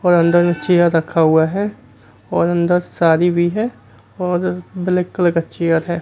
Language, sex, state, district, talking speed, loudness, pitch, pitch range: Hindi, male, Bihar, Kaimur, 180 wpm, -16 LUFS, 175 Hz, 165-180 Hz